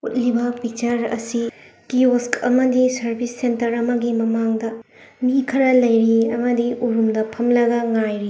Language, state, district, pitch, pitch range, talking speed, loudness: Manipuri, Manipur, Imphal West, 235 Hz, 230-245 Hz, 110 wpm, -19 LUFS